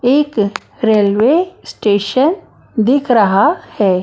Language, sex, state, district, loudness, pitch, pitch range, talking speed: Hindi, female, Maharashtra, Mumbai Suburban, -14 LUFS, 230 Hz, 205-285 Hz, 90 wpm